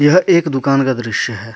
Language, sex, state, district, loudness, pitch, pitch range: Hindi, male, Jharkhand, Deoghar, -15 LUFS, 135 Hz, 120-150 Hz